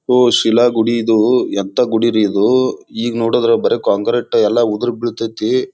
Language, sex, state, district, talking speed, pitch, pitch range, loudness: Kannada, male, Karnataka, Bijapur, 145 wpm, 120 Hz, 115-130 Hz, -15 LUFS